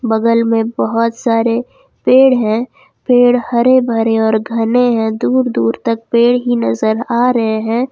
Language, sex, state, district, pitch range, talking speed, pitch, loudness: Hindi, female, Jharkhand, Ranchi, 225-245 Hz, 160 wpm, 230 Hz, -13 LUFS